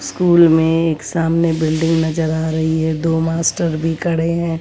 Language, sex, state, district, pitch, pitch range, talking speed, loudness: Hindi, female, Bihar, West Champaran, 165 Hz, 160-165 Hz, 180 wpm, -16 LUFS